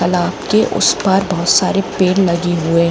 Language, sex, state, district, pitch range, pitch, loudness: Hindi, female, Jharkhand, Jamtara, 170-190 Hz, 180 Hz, -14 LUFS